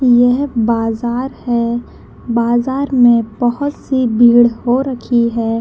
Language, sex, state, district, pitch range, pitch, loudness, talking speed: Hindi, female, Bihar, Madhepura, 235-255 Hz, 240 Hz, -14 LUFS, 115 wpm